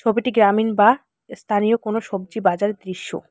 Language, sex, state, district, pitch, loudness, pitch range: Bengali, female, West Bengal, Alipurduar, 215 Hz, -20 LUFS, 200-225 Hz